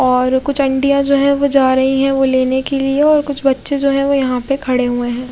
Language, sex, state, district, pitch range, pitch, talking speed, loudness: Hindi, female, Chhattisgarh, Raipur, 260-280 Hz, 270 Hz, 270 wpm, -14 LUFS